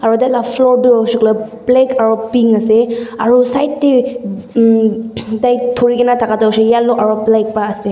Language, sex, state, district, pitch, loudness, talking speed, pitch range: Nagamese, female, Nagaland, Dimapur, 230 Hz, -12 LUFS, 195 wpm, 220-245 Hz